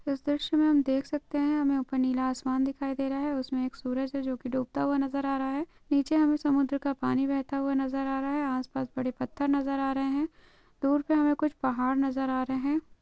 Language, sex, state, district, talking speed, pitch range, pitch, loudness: Hindi, female, Andhra Pradesh, Guntur, 235 wpm, 265-285 Hz, 275 Hz, -29 LUFS